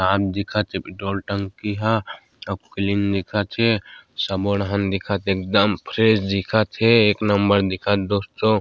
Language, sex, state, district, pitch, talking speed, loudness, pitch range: Chhattisgarhi, male, Chhattisgarh, Sarguja, 100 Hz, 160 wpm, -21 LUFS, 100-105 Hz